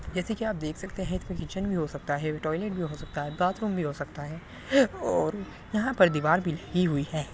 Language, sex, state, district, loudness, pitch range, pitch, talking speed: Hindi, male, Uttar Pradesh, Muzaffarnagar, -29 LUFS, 150-190 Hz, 170 Hz, 245 wpm